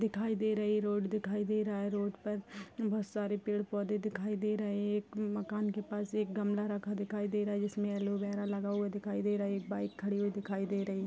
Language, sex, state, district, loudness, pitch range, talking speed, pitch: Hindi, female, Rajasthan, Nagaur, -36 LUFS, 200-210 Hz, 245 wpm, 205 Hz